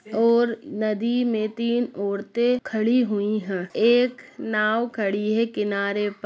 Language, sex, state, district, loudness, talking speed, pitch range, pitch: Hindi, female, Bihar, Jahanabad, -23 LUFS, 145 wpm, 210-240 Hz, 220 Hz